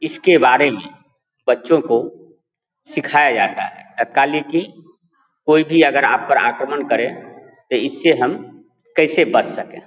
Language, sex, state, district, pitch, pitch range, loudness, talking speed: Hindi, male, Bihar, Darbhanga, 160 Hz, 140-170 Hz, -16 LUFS, 140 wpm